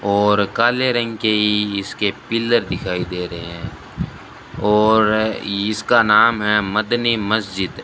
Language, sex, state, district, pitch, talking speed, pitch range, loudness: Hindi, male, Rajasthan, Bikaner, 105 Hz, 120 wpm, 100-110 Hz, -18 LUFS